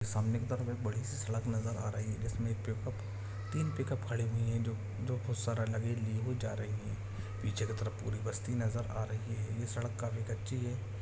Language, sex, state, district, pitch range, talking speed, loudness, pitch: Hindi, male, Bihar, Samastipur, 105-115 Hz, 245 wpm, -37 LUFS, 110 Hz